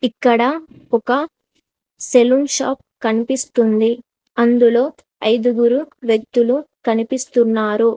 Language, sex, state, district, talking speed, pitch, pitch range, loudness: Telugu, female, Telangana, Mahabubabad, 70 wpm, 245 Hz, 230-265 Hz, -17 LUFS